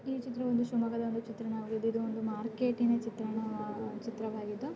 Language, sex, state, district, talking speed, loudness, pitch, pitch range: Kannada, female, Karnataka, Shimoga, 125 wpm, -35 LUFS, 225 Hz, 220-235 Hz